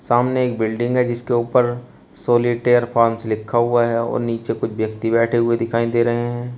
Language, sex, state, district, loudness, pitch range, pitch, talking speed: Hindi, male, Uttar Pradesh, Shamli, -19 LUFS, 115-120 Hz, 120 Hz, 190 wpm